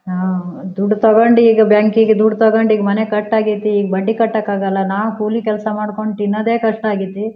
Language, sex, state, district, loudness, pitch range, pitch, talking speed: Kannada, female, Karnataka, Shimoga, -15 LUFS, 205-220 Hz, 215 Hz, 185 wpm